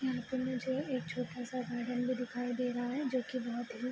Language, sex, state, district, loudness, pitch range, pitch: Hindi, female, Bihar, East Champaran, -37 LUFS, 245-255 Hz, 250 Hz